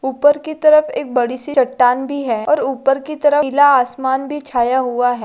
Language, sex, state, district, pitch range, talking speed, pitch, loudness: Hindi, female, Bihar, Vaishali, 250-290 Hz, 215 wpm, 265 Hz, -15 LUFS